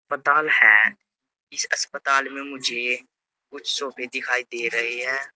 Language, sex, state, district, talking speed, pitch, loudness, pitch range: Hindi, male, Uttar Pradesh, Saharanpur, 135 wpm, 130 Hz, -21 LUFS, 125-140 Hz